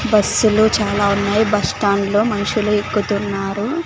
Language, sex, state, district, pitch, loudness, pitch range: Telugu, female, Andhra Pradesh, Sri Satya Sai, 210 Hz, -17 LUFS, 200-215 Hz